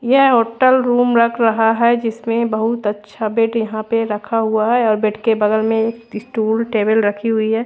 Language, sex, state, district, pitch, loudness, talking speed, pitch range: Hindi, female, Haryana, Rohtak, 225 Hz, -16 LUFS, 195 wpm, 220-235 Hz